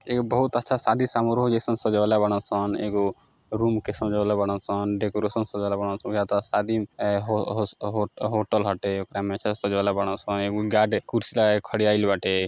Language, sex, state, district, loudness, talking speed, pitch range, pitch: Maithili, male, Bihar, Samastipur, -25 LUFS, 195 wpm, 100-110 Hz, 105 Hz